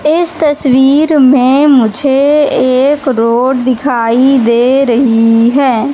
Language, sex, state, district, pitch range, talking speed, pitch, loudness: Hindi, female, Madhya Pradesh, Katni, 240-285 Hz, 100 wpm, 260 Hz, -9 LUFS